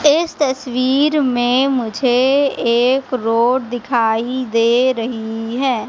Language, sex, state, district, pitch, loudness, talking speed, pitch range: Hindi, female, Madhya Pradesh, Katni, 250 Hz, -16 LUFS, 100 wpm, 235-270 Hz